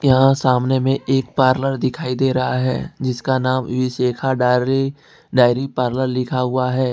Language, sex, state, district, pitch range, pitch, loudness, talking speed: Hindi, male, Jharkhand, Ranchi, 125-135 Hz, 130 Hz, -18 LUFS, 155 wpm